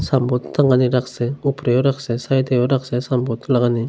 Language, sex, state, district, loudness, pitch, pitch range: Bengali, male, Tripura, Unakoti, -19 LUFS, 125 Hz, 125-135 Hz